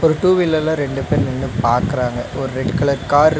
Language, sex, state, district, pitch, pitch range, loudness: Tamil, male, Tamil Nadu, Nilgiris, 140 Hz, 130-155 Hz, -17 LUFS